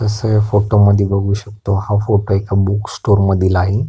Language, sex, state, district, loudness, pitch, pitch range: Marathi, male, Maharashtra, Pune, -15 LUFS, 100 Hz, 100-105 Hz